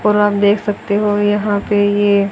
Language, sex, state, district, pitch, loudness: Hindi, female, Haryana, Charkhi Dadri, 205 Hz, -15 LUFS